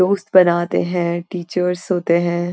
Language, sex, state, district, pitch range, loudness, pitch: Hindi, female, Uttarakhand, Uttarkashi, 175-180 Hz, -18 LUFS, 175 Hz